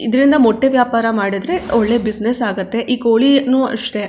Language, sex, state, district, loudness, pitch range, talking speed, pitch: Kannada, female, Karnataka, Chamarajanagar, -15 LUFS, 225-260 Hz, 160 wpm, 235 Hz